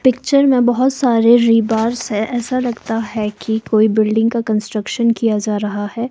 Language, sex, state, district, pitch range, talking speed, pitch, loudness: Hindi, female, Himachal Pradesh, Shimla, 215-245 Hz, 175 wpm, 225 Hz, -16 LUFS